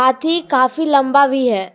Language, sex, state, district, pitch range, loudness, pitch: Hindi, female, Jharkhand, Deoghar, 255-305 Hz, -15 LUFS, 270 Hz